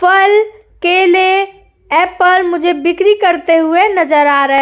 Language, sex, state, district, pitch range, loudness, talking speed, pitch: Hindi, female, Uttar Pradesh, Jyotiba Phule Nagar, 340-390 Hz, -11 LUFS, 145 wpm, 360 Hz